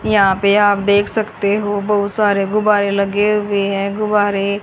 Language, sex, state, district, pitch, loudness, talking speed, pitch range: Hindi, female, Haryana, Rohtak, 205 Hz, -15 LUFS, 170 wpm, 200-210 Hz